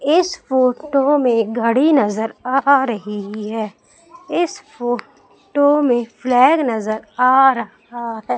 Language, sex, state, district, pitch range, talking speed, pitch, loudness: Hindi, female, Madhya Pradesh, Umaria, 225-285 Hz, 120 wpm, 250 Hz, -17 LUFS